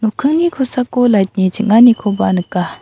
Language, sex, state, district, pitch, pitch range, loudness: Garo, female, Meghalaya, South Garo Hills, 220 Hz, 190-250 Hz, -13 LUFS